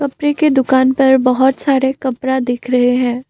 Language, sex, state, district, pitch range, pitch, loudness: Hindi, female, Assam, Kamrup Metropolitan, 255-270 Hz, 260 Hz, -14 LUFS